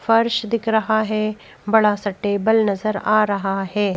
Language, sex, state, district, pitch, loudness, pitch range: Hindi, female, Madhya Pradesh, Bhopal, 215 Hz, -19 LUFS, 205-220 Hz